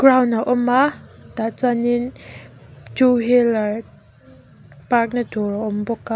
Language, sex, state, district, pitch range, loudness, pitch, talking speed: Mizo, female, Mizoram, Aizawl, 210-245 Hz, -19 LUFS, 230 Hz, 145 wpm